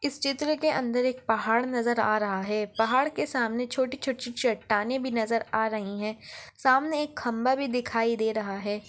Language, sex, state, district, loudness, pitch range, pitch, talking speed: Hindi, female, Maharashtra, Dhule, -27 LUFS, 220-260 Hz, 240 Hz, 190 wpm